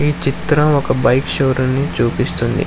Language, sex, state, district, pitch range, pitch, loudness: Telugu, male, Telangana, Hyderabad, 130-150 Hz, 140 Hz, -16 LUFS